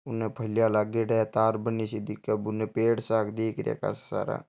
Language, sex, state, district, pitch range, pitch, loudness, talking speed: Marwari, male, Rajasthan, Churu, 110-115 Hz, 110 Hz, -28 LUFS, 240 wpm